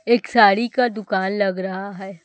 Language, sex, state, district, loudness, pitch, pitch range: Hindi, female, Chhattisgarh, Raipur, -19 LUFS, 200 Hz, 190-230 Hz